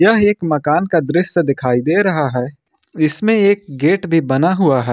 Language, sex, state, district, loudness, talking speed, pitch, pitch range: Hindi, male, Jharkhand, Ranchi, -15 LUFS, 195 wpm, 160 Hz, 140-190 Hz